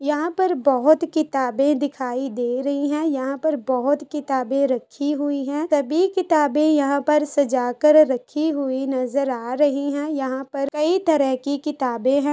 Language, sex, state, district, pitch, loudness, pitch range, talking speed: Hindi, female, Chhattisgarh, Bastar, 285 Hz, -21 LUFS, 265-300 Hz, 165 wpm